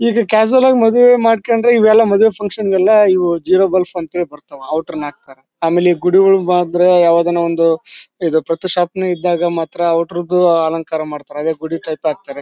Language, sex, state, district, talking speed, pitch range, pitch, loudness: Kannada, male, Karnataka, Bellary, 165 wpm, 165-205 Hz, 175 Hz, -14 LUFS